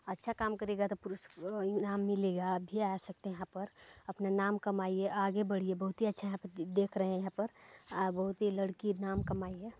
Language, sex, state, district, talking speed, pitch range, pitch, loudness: Hindi, female, Chhattisgarh, Balrampur, 215 wpm, 190-205 Hz, 195 Hz, -36 LUFS